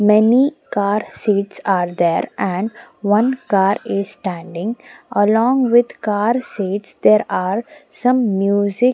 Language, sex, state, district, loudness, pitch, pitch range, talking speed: English, female, Punjab, Pathankot, -18 LUFS, 210 Hz, 200-240 Hz, 120 wpm